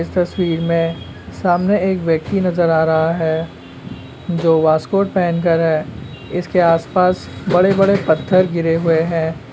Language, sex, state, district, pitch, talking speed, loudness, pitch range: Hindi, male, West Bengal, Kolkata, 165 Hz, 130 wpm, -16 LUFS, 160-180 Hz